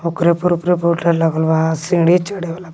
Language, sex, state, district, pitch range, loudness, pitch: Magahi, female, Jharkhand, Palamu, 165-175 Hz, -16 LUFS, 170 Hz